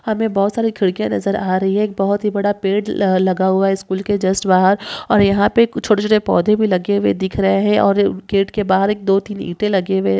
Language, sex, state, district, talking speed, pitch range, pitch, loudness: Hindi, female, Rajasthan, Nagaur, 245 wpm, 185-205 Hz, 195 Hz, -16 LUFS